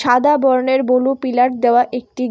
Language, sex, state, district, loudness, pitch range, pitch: Bengali, female, Tripura, West Tripura, -15 LUFS, 245-265 Hz, 255 Hz